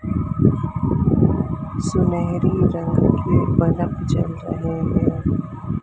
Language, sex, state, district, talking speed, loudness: Hindi, female, Maharashtra, Mumbai Suburban, 70 wpm, -20 LUFS